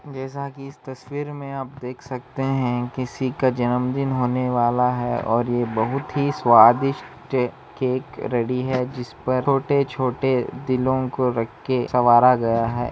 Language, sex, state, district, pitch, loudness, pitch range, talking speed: Hindi, female, Chhattisgarh, Bastar, 130 Hz, -21 LUFS, 120-135 Hz, 160 wpm